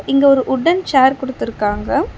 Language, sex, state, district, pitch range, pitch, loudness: Tamil, female, Tamil Nadu, Chennai, 260-280 Hz, 265 Hz, -15 LUFS